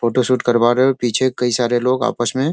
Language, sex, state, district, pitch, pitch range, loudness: Hindi, male, Bihar, Sitamarhi, 125 Hz, 120-130 Hz, -17 LUFS